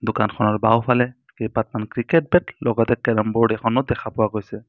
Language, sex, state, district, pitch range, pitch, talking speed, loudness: Assamese, male, Assam, Sonitpur, 110-120 Hz, 115 Hz, 155 wpm, -21 LUFS